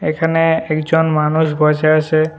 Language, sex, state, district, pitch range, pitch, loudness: Bengali, male, Tripura, West Tripura, 155-160 Hz, 155 Hz, -15 LUFS